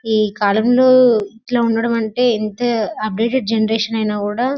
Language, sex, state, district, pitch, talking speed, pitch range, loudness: Telugu, female, Telangana, Karimnagar, 225 Hz, 145 wpm, 215-240 Hz, -16 LUFS